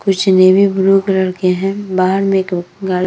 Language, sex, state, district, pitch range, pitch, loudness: Hindi, female, Bihar, Vaishali, 185-195 Hz, 190 Hz, -13 LUFS